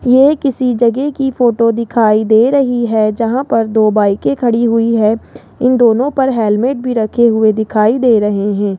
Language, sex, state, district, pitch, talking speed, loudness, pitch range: Hindi, male, Rajasthan, Jaipur, 230 Hz, 185 wpm, -12 LUFS, 215-250 Hz